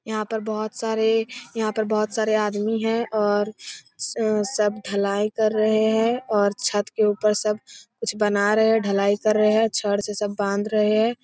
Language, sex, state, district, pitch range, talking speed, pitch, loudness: Hindi, female, Bihar, Jamui, 205-220 Hz, 185 wpm, 215 Hz, -22 LUFS